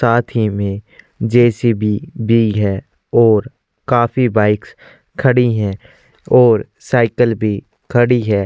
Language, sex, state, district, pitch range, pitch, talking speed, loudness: Hindi, male, Chhattisgarh, Korba, 105-120 Hz, 115 Hz, 115 wpm, -15 LUFS